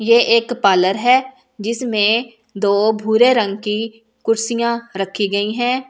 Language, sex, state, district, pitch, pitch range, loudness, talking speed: Hindi, female, Delhi, New Delhi, 225 Hz, 210-235 Hz, -17 LUFS, 130 wpm